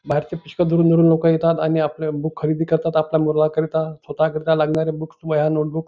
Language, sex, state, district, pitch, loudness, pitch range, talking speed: Marathi, male, Maharashtra, Nagpur, 160 Hz, -19 LUFS, 155-160 Hz, 205 wpm